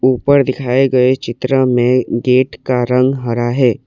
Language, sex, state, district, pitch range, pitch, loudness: Hindi, male, Assam, Kamrup Metropolitan, 125-130 Hz, 125 Hz, -14 LUFS